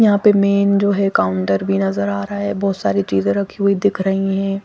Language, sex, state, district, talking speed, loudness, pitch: Hindi, female, Chandigarh, Chandigarh, 245 wpm, -17 LUFS, 195 Hz